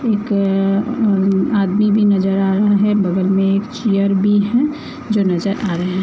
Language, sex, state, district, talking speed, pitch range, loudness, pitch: Hindi, female, Uttar Pradesh, Varanasi, 200 wpm, 195-210 Hz, -16 LUFS, 200 Hz